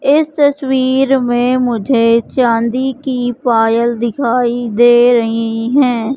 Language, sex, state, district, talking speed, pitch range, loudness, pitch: Hindi, female, Madhya Pradesh, Katni, 95 wpm, 235-265 Hz, -13 LUFS, 245 Hz